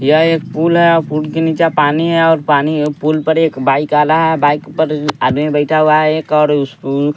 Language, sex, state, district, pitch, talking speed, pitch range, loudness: Hindi, male, Bihar, West Champaran, 155 Hz, 260 wpm, 150-160 Hz, -13 LUFS